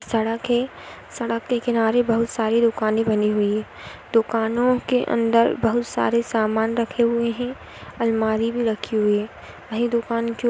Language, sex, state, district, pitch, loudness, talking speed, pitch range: Hindi, female, Maharashtra, Dhule, 230 Hz, -22 LUFS, 155 wpm, 220-235 Hz